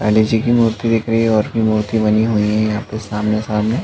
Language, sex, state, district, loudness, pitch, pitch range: Hindi, male, Chhattisgarh, Bastar, -16 LUFS, 110 Hz, 105-115 Hz